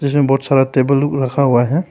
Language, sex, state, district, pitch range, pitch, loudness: Hindi, male, Arunachal Pradesh, Papum Pare, 135-140 Hz, 135 Hz, -15 LUFS